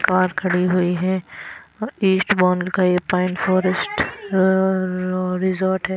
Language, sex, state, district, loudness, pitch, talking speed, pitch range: Hindi, female, Himachal Pradesh, Shimla, -19 LUFS, 185 Hz, 120 wpm, 180-190 Hz